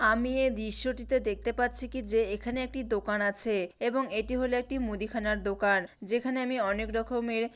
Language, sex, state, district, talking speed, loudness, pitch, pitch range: Bengali, female, West Bengal, Malda, 165 wpm, -30 LUFS, 230 Hz, 210-255 Hz